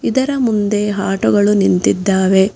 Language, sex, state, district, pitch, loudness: Kannada, female, Karnataka, Bangalore, 195 Hz, -14 LUFS